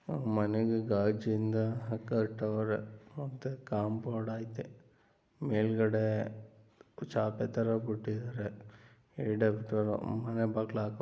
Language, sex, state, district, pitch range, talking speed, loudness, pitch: Kannada, male, Karnataka, Mysore, 110-115 Hz, 65 wpm, -34 LUFS, 110 Hz